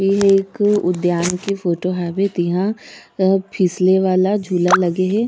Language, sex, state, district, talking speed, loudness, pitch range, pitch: Chhattisgarhi, female, Chhattisgarh, Raigarh, 150 wpm, -17 LUFS, 180-200 Hz, 190 Hz